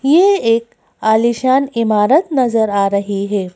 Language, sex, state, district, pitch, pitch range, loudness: Hindi, female, Madhya Pradesh, Bhopal, 230 Hz, 205-265 Hz, -14 LUFS